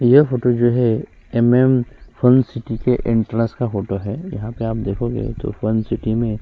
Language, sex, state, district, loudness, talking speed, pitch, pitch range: Hindi, female, Chhattisgarh, Sukma, -19 LUFS, 180 wpm, 120 Hz, 110-125 Hz